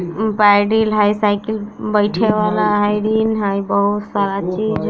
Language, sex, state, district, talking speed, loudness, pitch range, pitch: Bajjika, female, Bihar, Vaishali, 145 wpm, -16 LUFS, 205-215 Hz, 210 Hz